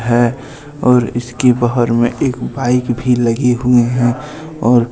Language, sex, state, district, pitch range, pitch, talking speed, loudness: Hindi, male, Jharkhand, Deoghar, 120-130 Hz, 125 Hz, 145 wpm, -14 LUFS